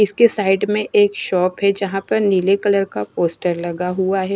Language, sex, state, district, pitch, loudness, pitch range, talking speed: Hindi, female, Himachal Pradesh, Shimla, 195 Hz, -18 LUFS, 180-205 Hz, 205 wpm